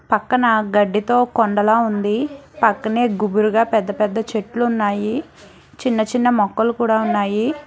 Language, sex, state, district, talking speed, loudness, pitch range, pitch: Telugu, female, Telangana, Hyderabad, 115 wpm, -18 LUFS, 210-240 Hz, 220 Hz